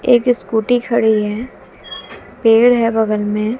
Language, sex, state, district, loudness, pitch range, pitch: Hindi, female, Haryana, Jhajjar, -15 LUFS, 215-245 Hz, 225 Hz